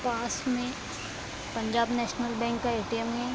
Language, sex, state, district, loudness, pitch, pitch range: Hindi, female, Bihar, Araria, -31 LUFS, 235 Hz, 235-245 Hz